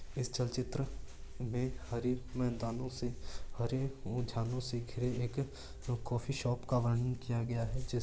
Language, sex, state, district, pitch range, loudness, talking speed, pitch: Marwari, male, Rajasthan, Churu, 120-125 Hz, -38 LUFS, 155 wpm, 125 Hz